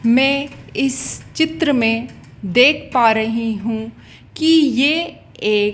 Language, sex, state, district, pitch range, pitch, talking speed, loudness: Hindi, female, Madhya Pradesh, Dhar, 225-285 Hz, 250 Hz, 115 wpm, -17 LUFS